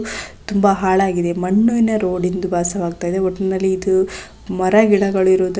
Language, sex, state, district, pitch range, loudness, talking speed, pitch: Kannada, female, Karnataka, Gulbarga, 185-200 Hz, -17 LUFS, 120 wpm, 190 Hz